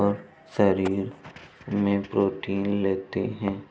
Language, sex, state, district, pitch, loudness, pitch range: Hindi, male, Uttar Pradesh, Budaun, 100 Hz, -26 LUFS, 95-100 Hz